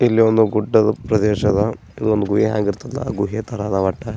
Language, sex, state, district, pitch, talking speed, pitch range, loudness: Kannada, male, Karnataka, Gulbarga, 105 Hz, 185 wpm, 100-110 Hz, -18 LUFS